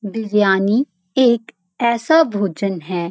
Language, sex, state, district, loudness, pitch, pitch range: Hindi, female, Uttarakhand, Uttarkashi, -17 LUFS, 205 Hz, 185-235 Hz